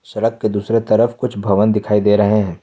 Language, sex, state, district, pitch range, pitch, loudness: Hindi, male, Jharkhand, Ranchi, 105-115 Hz, 105 Hz, -16 LUFS